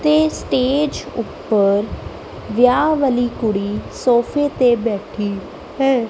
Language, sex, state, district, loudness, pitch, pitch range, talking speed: Punjabi, female, Punjab, Kapurthala, -18 LUFS, 245 Hz, 210-280 Hz, 100 wpm